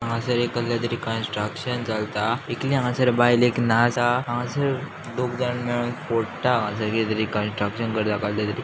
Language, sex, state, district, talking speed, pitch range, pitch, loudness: Konkani, male, Goa, North and South Goa, 140 wpm, 110-125 Hz, 120 Hz, -24 LUFS